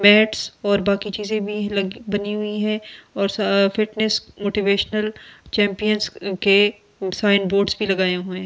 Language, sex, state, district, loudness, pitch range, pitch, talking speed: Hindi, female, Delhi, New Delhi, -20 LUFS, 200-210 Hz, 205 Hz, 150 wpm